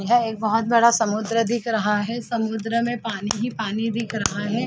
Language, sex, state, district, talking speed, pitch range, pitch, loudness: Hindi, female, Chhattisgarh, Rajnandgaon, 205 wpm, 220-235 Hz, 225 Hz, -22 LUFS